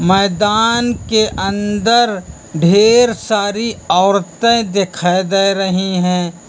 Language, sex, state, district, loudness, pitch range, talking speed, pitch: Hindi, male, Uttar Pradesh, Lucknow, -14 LUFS, 185-225 Hz, 90 wpm, 200 Hz